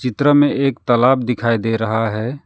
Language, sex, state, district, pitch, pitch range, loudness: Hindi, male, West Bengal, Alipurduar, 125 Hz, 115-140 Hz, -16 LUFS